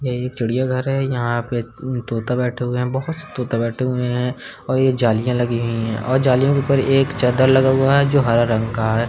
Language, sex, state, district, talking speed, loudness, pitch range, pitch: Hindi, male, Uttar Pradesh, Hamirpur, 240 wpm, -19 LUFS, 120-130 Hz, 125 Hz